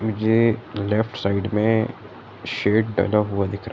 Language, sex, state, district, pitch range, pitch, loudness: Hindi, male, Bihar, East Champaran, 100-110 Hz, 110 Hz, -22 LUFS